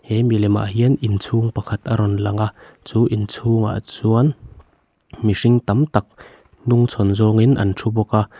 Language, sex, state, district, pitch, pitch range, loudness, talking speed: Mizo, male, Mizoram, Aizawl, 110 Hz, 105-115 Hz, -18 LUFS, 155 wpm